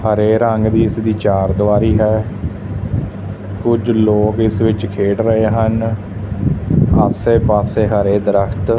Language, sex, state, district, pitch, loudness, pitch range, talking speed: Punjabi, male, Punjab, Fazilka, 110 Hz, -15 LUFS, 100-110 Hz, 125 wpm